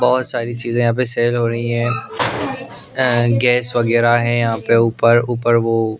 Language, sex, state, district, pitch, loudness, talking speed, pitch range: Hindi, male, Punjab, Pathankot, 120 Hz, -17 LUFS, 170 wpm, 115-120 Hz